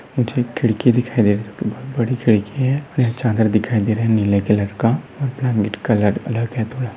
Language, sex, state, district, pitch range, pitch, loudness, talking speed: Hindi, male, Chhattisgarh, Raigarh, 105-125 Hz, 115 Hz, -19 LUFS, 260 wpm